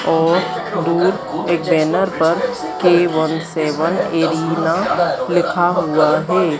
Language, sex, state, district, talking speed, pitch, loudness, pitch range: Hindi, female, Madhya Pradesh, Dhar, 110 wpm, 170 Hz, -17 LUFS, 160-175 Hz